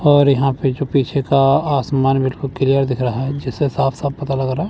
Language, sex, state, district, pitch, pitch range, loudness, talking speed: Hindi, male, Chandigarh, Chandigarh, 135 Hz, 135-140 Hz, -17 LUFS, 240 wpm